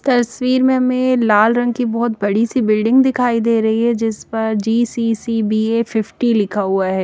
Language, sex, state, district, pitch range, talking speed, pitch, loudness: Hindi, female, Chandigarh, Chandigarh, 220-245 Hz, 180 wpm, 230 Hz, -16 LUFS